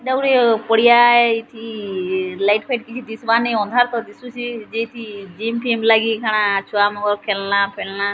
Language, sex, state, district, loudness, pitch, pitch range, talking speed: Odia, female, Odisha, Sambalpur, -18 LUFS, 225 Hz, 205-235 Hz, 155 wpm